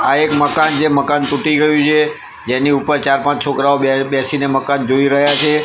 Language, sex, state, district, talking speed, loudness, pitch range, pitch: Gujarati, male, Gujarat, Gandhinagar, 190 wpm, -14 LUFS, 140-150 Hz, 145 Hz